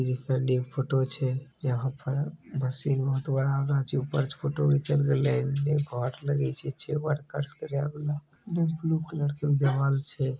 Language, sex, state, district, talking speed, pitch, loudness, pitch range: Maithili, male, Bihar, Begusarai, 160 wpm, 140 Hz, -29 LUFS, 135-145 Hz